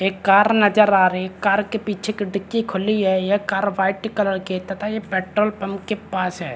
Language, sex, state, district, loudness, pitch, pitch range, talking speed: Hindi, male, Chhattisgarh, Rajnandgaon, -20 LUFS, 195 Hz, 190-210 Hz, 240 wpm